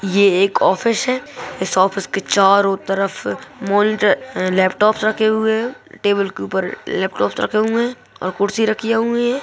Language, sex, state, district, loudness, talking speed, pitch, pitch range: Hindi, female, Bihar, Purnia, -17 LUFS, 160 wpm, 205 Hz, 195-225 Hz